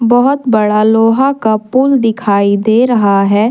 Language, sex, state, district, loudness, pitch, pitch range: Hindi, female, Jharkhand, Deoghar, -11 LUFS, 225 Hz, 210-245 Hz